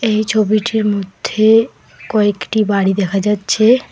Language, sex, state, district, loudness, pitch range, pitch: Bengali, female, West Bengal, Alipurduar, -15 LUFS, 200-220 Hz, 215 Hz